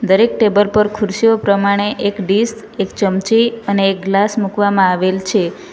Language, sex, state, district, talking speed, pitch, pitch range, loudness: Gujarati, female, Gujarat, Valsad, 155 wpm, 205 Hz, 195-215 Hz, -15 LUFS